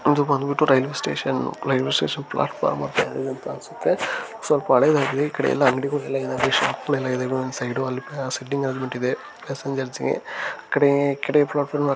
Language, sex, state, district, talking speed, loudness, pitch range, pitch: Kannada, male, Karnataka, Dharwad, 140 wpm, -23 LUFS, 130-145 Hz, 135 Hz